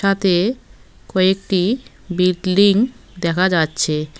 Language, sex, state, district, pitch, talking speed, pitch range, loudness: Bengali, female, West Bengal, Cooch Behar, 185 Hz, 70 wpm, 180-195 Hz, -18 LUFS